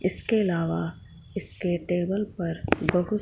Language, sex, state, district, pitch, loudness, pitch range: Hindi, female, Punjab, Fazilka, 175 Hz, -27 LUFS, 165-190 Hz